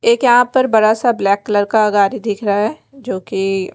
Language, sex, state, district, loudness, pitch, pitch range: Hindi, female, Bihar, Patna, -15 LUFS, 215 Hz, 200-240 Hz